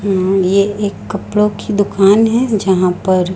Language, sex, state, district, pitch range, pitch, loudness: Hindi, female, Chhattisgarh, Raipur, 190-210 Hz, 200 Hz, -14 LUFS